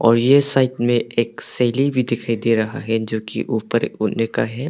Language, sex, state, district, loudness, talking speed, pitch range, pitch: Hindi, male, Arunachal Pradesh, Papum Pare, -19 LUFS, 205 wpm, 115-135 Hz, 120 Hz